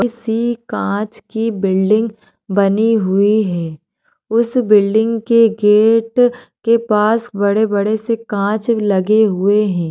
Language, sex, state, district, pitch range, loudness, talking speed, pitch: Hindi, female, Maharashtra, Sindhudurg, 200-230 Hz, -15 LUFS, 120 wpm, 215 Hz